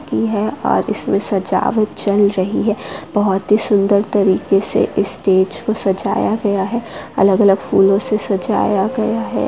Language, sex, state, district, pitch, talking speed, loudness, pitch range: Hindi, female, West Bengal, Dakshin Dinajpur, 200 Hz, 150 wpm, -16 LUFS, 195-215 Hz